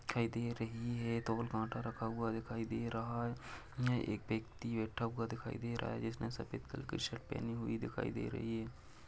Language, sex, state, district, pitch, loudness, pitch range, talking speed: Hindi, male, Uttar Pradesh, Varanasi, 115 Hz, -41 LUFS, 115-120 Hz, 205 wpm